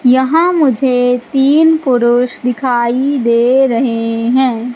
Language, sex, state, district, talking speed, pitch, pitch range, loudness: Hindi, female, Madhya Pradesh, Katni, 100 wpm, 250 Hz, 240-270 Hz, -12 LUFS